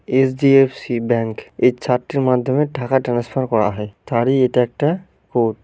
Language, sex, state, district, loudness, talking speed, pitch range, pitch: Bengali, male, West Bengal, Malda, -18 LUFS, 140 wpm, 120-135 Hz, 125 Hz